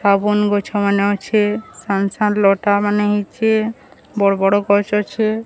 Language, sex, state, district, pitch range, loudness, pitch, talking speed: Odia, male, Odisha, Sambalpur, 200-215 Hz, -17 LUFS, 205 Hz, 145 wpm